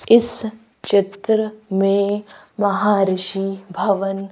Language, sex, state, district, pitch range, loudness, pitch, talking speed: Hindi, female, Madhya Pradesh, Bhopal, 195-215 Hz, -18 LUFS, 200 Hz, 70 wpm